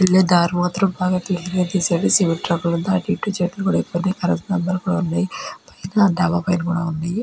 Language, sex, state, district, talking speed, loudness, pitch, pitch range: Telugu, female, Andhra Pradesh, Chittoor, 160 wpm, -20 LUFS, 180 Hz, 175-185 Hz